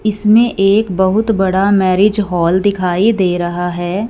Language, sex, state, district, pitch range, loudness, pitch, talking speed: Hindi, female, Punjab, Fazilka, 185-210 Hz, -13 LUFS, 195 Hz, 145 wpm